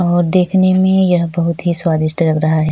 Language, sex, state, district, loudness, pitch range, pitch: Hindi, female, Chhattisgarh, Sukma, -14 LUFS, 160-180 Hz, 170 Hz